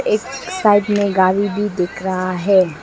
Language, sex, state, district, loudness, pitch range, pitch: Hindi, female, Arunachal Pradesh, Lower Dibang Valley, -17 LUFS, 185-205 Hz, 195 Hz